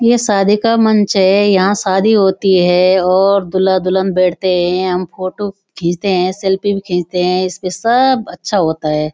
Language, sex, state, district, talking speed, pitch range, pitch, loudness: Hindi, female, Uttarakhand, Uttarkashi, 185 wpm, 180-200 Hz, 190 Hz, -13 LUFS